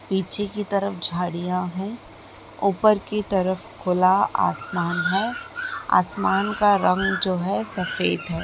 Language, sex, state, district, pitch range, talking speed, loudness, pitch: Hindi, female, Uttar Pradesh, Gorakhpur, 180-205 Hz, 130 wpm, -23 LUFS, 190 Hz